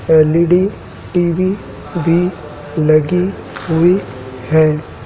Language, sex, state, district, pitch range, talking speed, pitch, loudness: Hindi, male, Madhya Pradesh, Dhar, 155-180 Hz, 70 wpm, 165 Hz, -15 LUFS